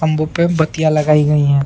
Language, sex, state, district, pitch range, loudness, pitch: Hindi, male, Bihar, Saran, 150-160 Hz, -14 LUFS, 155 Hz